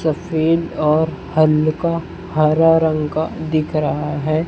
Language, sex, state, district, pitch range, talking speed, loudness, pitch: Hindi, male, Chhattisgarh, Raipur, 155-165 Hz, 120 wpm, -18 LUFS, 155 Hz